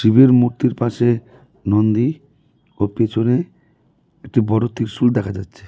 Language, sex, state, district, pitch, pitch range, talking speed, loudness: Bengali, male, West Bengal, Cooch Behar, 120 Hz, 110-125 Hz, 115 wpm, -18 LUFS